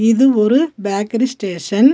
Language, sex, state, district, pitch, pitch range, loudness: Tamil, female, Tamil Nadu, Nilgiris, 225 Hz, 205-260 Hz, -16 LUFS